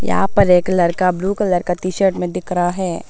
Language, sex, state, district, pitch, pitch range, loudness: Hindi, female, Arunachal Pradesh, Papum Pare, 180 Hz, 180-190 Hz, -17 LUFS